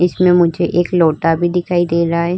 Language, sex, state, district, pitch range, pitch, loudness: Hindi, female, Uttar Pradesh, Hamirpur, 170-180 Hz, 175 Hz, -14 LUFS